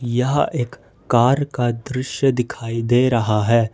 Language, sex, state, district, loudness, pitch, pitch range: Hindi, male, Jharkhand, Ranchi, -19 LUFS, 120 Hz, 115-130 Hz